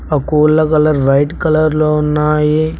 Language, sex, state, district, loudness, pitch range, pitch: Telugu, male, Telangana, Mahabubabad, -13 LUFS, 150-155 Hz, 150 Hz